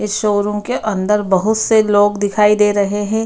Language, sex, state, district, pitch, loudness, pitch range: Hindi, female, Bihar, Kishanganj, 210 Hz, -15 LUFS, 205-215 Hz